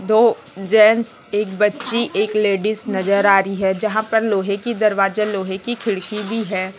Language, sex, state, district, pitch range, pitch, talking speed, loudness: Hindi, female, Chhattisgarh, Raipur, 195-220 Hz, 210 Hz, 175 wpm, -18 LUFS